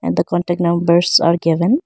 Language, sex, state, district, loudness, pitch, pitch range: English, female, Arunachal Pradesh, Lower Dibang Valley, -15 LUFS, 170 Hz, 165-175 Hz